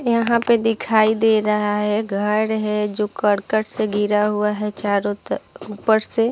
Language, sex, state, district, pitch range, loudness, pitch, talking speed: Hindi, female, Bihar, Saharsa, 210-220 Hz, -20 LUFS, 210 Hz, 180 wpm